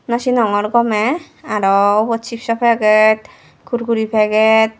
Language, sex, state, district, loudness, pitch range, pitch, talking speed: Chakma, female, Tripura, Dhalai, -15 LUFS, 215-235 Hz, 220 Hz, 115 wpm